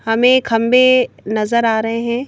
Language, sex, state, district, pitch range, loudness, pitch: Hindi, female, Madhya Pradesh, Bhopal, 225-250 Hz, -14 LUFS, 235 Hz